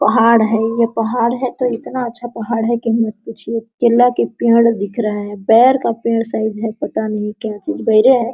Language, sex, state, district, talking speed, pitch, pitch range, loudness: Hindi, female, Bihar, Araria, 195 wpm, 230 Hz, 220-235 Hz, -16 LUFS